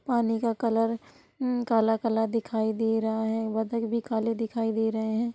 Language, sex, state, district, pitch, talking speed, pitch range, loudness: Hindi, female, Bihar, Sitamarhi, 225 Hz, 190 wpm, 220-230 Hz, -27 LUFS